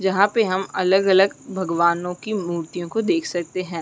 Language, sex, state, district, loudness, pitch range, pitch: Hindi, female, Uttarakhand, Uttarkashi, -21 LUFS, 175-200 Hz, 185 Hz